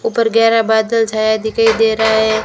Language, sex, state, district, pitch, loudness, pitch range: Hindi, female, Rajasthan, Bikaner, 220 Hz, -13 LUFS, 220-225 Hz